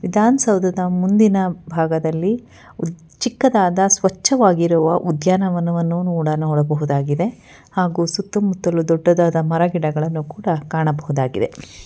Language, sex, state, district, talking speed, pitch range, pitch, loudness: Kannada, female, Karnataka, Bangalore, 70 wpm, 160-190 Hz, 175 Hz, -18 LUFS